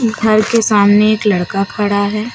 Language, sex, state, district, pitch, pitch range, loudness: Hindi, female, Uttar Pradesh, Lucknow, 210 Hz, 205-220 Hz, -13 LUFS